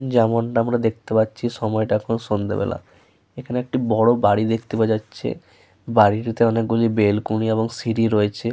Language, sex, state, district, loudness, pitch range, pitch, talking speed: Bengali, male, Jharkhand, Sahebganj, -20 LUFS, 110-115 Hz, 115 Hz, 140 wpm